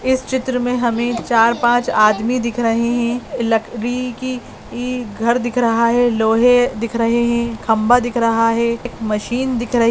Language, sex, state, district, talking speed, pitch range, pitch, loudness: Hindi, female, Uttarakhand, Tehri Garhwal, 155 wpm, 230-245 Hz, 235 Hz, -17 LUFS